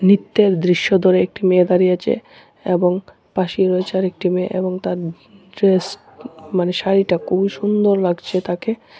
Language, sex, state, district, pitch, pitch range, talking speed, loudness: Bengali, male, Tripura, West Tripura, 185 Hz, 180-195 Hz, 140 wpm, -18 LUFS